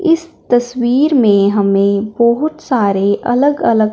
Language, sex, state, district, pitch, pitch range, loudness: Hindi, male, Punjab, Fazilka, 240 Hz, 205-280 Hz, -13 LUFS